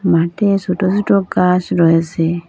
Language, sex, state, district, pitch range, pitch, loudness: Bengali, female, Assam, Hailakandi, 170-195 Hz, 180 Hz, -15 LUFS